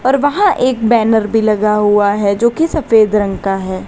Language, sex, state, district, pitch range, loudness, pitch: Hindi, female, Uttar Pradesh, Lalitpur, 205-255 Hz, -13 LUFS, 220 Hz